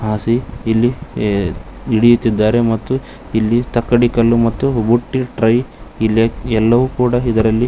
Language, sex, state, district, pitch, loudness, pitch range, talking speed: Kannada, male, Karnataka, Koppal, 115 Hz, -15 LUFS, 110-120 Hz, 110 wpm